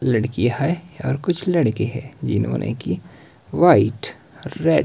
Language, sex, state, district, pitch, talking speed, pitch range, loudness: Hindi, male, Himachal Pradesh, Shimla, 135 Hz, 135 wpm, 120-175 Hz, -21 LUFS